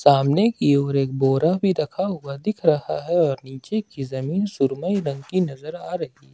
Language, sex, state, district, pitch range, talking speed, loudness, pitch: Hindi, male, Jharkhand, Ranchi, 135-185 Hz, 210 wpm, -22 LUFS, 145 Hz